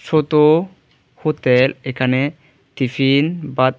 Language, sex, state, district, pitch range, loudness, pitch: Bengali, male, Tripura, Dhalai, 130-155 Hz, -17 LUFS, 140 Hz